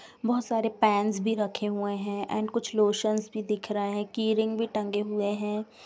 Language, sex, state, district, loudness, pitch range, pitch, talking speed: Hindi, female, Bihar, Jamui, -28 LUFS, 205-220 Hz, 215 Hz, 195 wpm